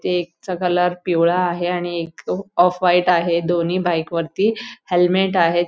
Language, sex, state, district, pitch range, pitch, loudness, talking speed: Marathi, female, Goa, North and South Goa, 170-180 Hz, 175 Hz, -19 LUFS, 170 wpm